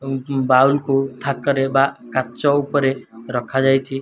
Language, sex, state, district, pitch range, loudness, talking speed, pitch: Odia, male, Odisha, Malkangiri, 130-140 Hz, -19 LUFS, 120 wpm, 135 Hz